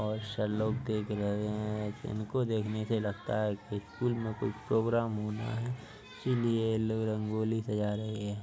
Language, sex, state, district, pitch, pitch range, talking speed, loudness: Hindi, male, Uttar Pradesh, Jyotiba Phule Nagar, 110 Hz, 105-115 Hz, 185 wpm, -33 LUFS